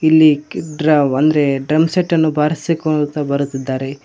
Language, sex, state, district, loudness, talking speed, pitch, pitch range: Kannada, male, Karnataka, Koppal, -16 LUFS, 90 wpm, 150 Hz, 140-155 Hz